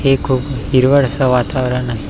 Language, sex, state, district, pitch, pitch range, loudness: Marathi, male, Maharashtra, Pune, 130 Hz, 125-135 Hz, -15 LUFS